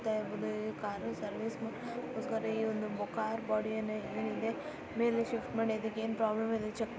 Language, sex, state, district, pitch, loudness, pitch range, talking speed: Kannada, female, Karnataka, Shimoga, 220 Hz, -36 LUFS, 215-225 Hz, 145 wpm